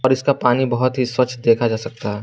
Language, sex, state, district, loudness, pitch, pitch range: Hindi, male, Jharkhand, Garhwa, -18 LUFS, 125 Hz, 115-130 Hz